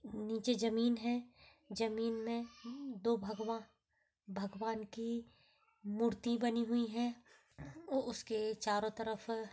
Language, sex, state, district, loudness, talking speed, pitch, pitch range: Hindi, female, Bihar, East Champaran, -39 LUFS, 105 wpm, 230 Hz, 220-240 Hz